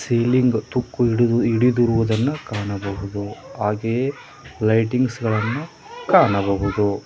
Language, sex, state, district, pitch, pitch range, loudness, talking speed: Kannada, male, Karnataka, Koppal, 115 Hz, 105-125 Hz, -20 LUFS, 75 wpm